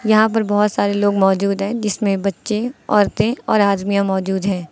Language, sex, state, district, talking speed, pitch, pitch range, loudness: Hindi, female, Uttar Pradesh, Lucknow, 180 wpm, 205 Hz, 195-215 Hz, -18 LUFS